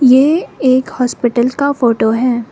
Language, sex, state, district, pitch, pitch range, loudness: Hindi, female, Arunachal Pradesh, Lower Dibang Valley, 250 Hz, 240-265 Hz, -13 LUFS